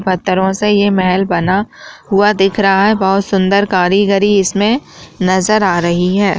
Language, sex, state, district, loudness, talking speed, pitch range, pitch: Hindi, female, Bihar, Jahanabad, -13 LUFS, 160 wpm, 185-200 Hz, 195 Hz